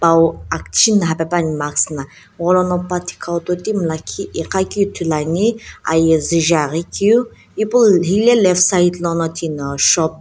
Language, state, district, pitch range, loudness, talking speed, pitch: Sumi, Nagaland, Dimapur, 160-190 Hz, -16 LUFS, 140 wpm, 175 Hz